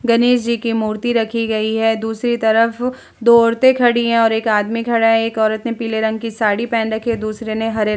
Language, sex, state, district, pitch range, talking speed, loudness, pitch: Hindi, female, Bihar, Vaishali, 220-235 Hz, 240 wpm, -16 LUFS, 225 Hz